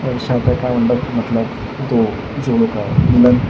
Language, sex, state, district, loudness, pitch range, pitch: Hindi, male, Maharashtra, Gondia, -16 LUFS, 115-125 Hz, 120 Hz